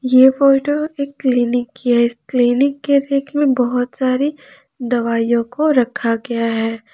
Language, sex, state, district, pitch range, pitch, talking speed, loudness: Hindi, female, Jharkhand, Palamu, 240-280 Hz, 255 Hz, 155 wpm, -17 LUFS